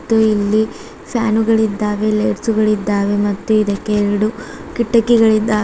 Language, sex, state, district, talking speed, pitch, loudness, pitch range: Kannada, female, Karnataka, Bidar, 95 wpm, 215 Hz, -16 LUFS, 210-225 Hz